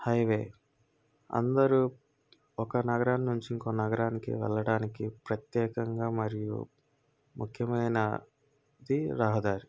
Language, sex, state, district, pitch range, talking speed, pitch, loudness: Telugu, male, Andhra Pradesh, Guntur, 110-135 Hz, 80 wpm, 115 Hz, -31 LUFS